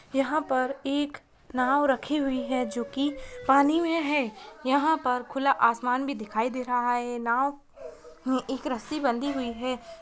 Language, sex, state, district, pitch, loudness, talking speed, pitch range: Hindi, female, Bihar, Purnia, 260 Hz, -27 LUFS, 170 wpm, 245-280 Hz